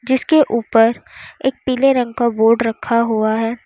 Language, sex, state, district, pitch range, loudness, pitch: Hindi, female, Uttar Pradesh, Lalitpur, 225-260 Hz, -16 LUFS, 235 Hz